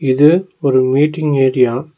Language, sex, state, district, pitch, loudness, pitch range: Tamil, male, Tamil Nadu, Nilgiris, 140 Hz, -13 LUFS, 130-155 Hz